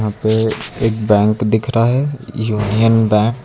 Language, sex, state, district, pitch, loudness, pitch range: Hindi, male, Uttar Pradesh, Lucknow, 110 Hz, -16 LUFS, 105-115 Hz